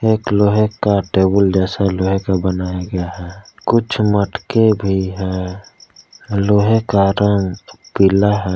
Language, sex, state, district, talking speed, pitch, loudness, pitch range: Hindi, male, Jharkhand, Palamu, 135 wpm, 100 Hz, -16 LUFS, 95-105 Hz